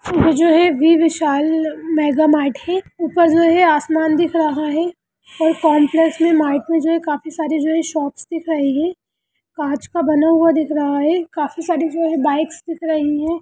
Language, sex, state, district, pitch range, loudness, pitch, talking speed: Hindi, female, Bihar, Lakhisarai, 300-330 Hz, -16 LUFS, 320 Hz, 200 wpm